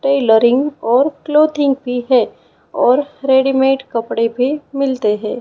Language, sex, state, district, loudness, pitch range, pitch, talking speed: Hindi, female, Chhattisgarh, Raipur, -15 LUFS, 245-280 Hz, 265 Hz, 120 wpm